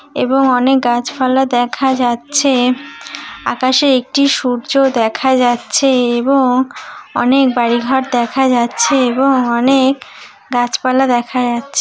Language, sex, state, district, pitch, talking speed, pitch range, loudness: Bengali, female, West Bengal, Malda, 255 Hz, 100 wpm, 240-265 Hz, -13 LUFS